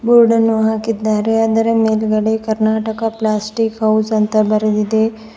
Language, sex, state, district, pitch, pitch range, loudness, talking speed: Kannada, female, Karnataka, Bidar, 220 Hz, 215-225 Hz, -15 LUFS, 110 wpm